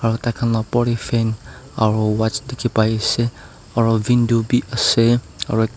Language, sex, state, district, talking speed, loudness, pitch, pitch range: Nagamese, male, Nagaland, Dimapur, 135 wpm, -19 LUFS, 115 Hz, 110-120 Hz